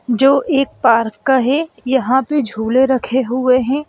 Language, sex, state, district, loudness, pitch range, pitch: Hindi, female, Madhya Pradesh, Bhopal, -15 LUFS, 250-275 Hz, 260 Hz